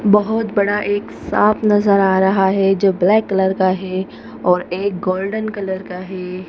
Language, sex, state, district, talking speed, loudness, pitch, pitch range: Hindi, female, Madhya Pradesh, Bhopal, 175 wpm, -17 LUFS, 195 Hz, 185-205 Hz